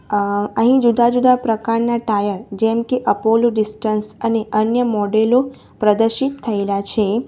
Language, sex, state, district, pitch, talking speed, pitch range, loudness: Gujarati, female, Gujarat, Valsad, 225 Hz, 125 wpm, 210-235 Hz, -17 LUFS